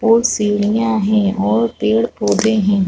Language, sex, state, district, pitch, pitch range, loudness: Hindi, female, Chhattisgarh, Rajnandgaon, 215 Hz, 205-225 Hz, -16 LUFS